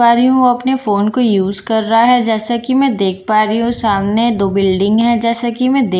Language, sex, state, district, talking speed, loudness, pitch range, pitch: Hindi, female, Bihar, Katihar, 270 wpm, -13 LUFS, 205-240 Hz, 230 Hz